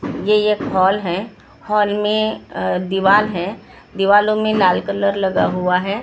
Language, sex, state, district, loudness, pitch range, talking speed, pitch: Hindi, female, Maharashtra, Gondia, -17 LUFS, 190-210 Hz, 180 wpm, 200 Hz